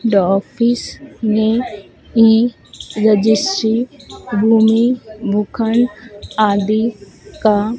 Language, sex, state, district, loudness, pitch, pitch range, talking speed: Hindi, female, Madhya Pradesh, Dhar, -15 LUFS, 220 Hz, 210-235 Hz, 70 wpm